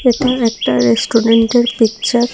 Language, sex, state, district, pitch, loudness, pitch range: Bengali, female, Tripura, South Tripura, 230 Hz, -13 LUFS, 225-240 Hz